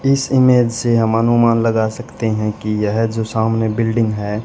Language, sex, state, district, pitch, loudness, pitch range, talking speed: Hindi, male, Haryana, Charkhi Dadri, 115 Hz, -16 LUFS, 110-120 Hz, 190 wpm